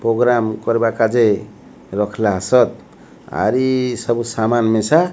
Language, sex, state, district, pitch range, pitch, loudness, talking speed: Odia, male, Odisha, Malkangiri, 110-125 Hz, 115 Hz, -17 LUFS, 115 wpm